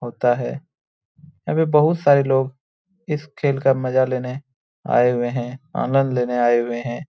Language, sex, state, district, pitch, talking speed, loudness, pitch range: Hindi, male, Bihar, Jamui, 135 Hz, 170 wpm, -20 LUFS, 125-150 Hz